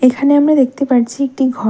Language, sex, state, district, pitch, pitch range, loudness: Bengali, female, West Bengal, Darjeeling, 265 Hz, 255-280 Hz, -13 LUFS